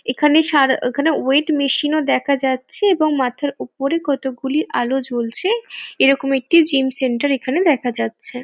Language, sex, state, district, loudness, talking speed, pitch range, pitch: Bengali, female, West Bengal, Paschim Medinipur, -17 LUFS, 155 wpm, 260-305 Hz, 275 Hz